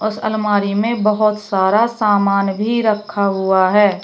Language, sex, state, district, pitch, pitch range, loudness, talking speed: Hindi, female, Uttar Pradesh, Shamli, 210 Hz, 200-215 Hz, -16 LUFS, 150 wpm